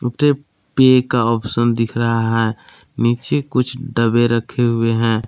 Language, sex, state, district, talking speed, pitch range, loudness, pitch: Hindi, male, Jharkhand, Palamu, 135 wpm, 115-125 Hz, -17 LUFS, 120 Hz